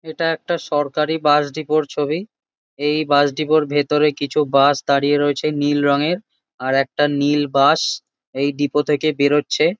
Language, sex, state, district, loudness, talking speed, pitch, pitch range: Bengali, male, West Bengal, Jalpaiguri, -18 LUFS, 160 wpm, 145 Hz, 145-155 Hz